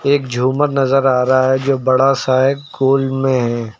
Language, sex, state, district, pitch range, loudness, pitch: Hindi, male, Uttar Pradesh, Lucknow, 130-135 Hz, -15 LUFS, 135 Hz